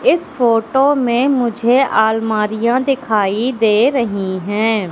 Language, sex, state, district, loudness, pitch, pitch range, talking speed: Hindi, female, Madhya Pradesh, Katni, -15 LUFS, 230 Hz, 215-260 Hz, 110 wpm